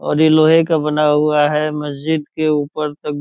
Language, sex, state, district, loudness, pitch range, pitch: Hindi, male, Bihar, Purnia, -16 LUFS, 150-155 Hz, 150 Hz